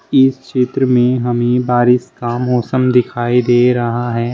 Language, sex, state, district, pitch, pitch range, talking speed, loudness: Hindi, male, Uttar Pradesh, Shamli, 125 Hz, 120-125 Hz, 150 wpm, -14 LUFS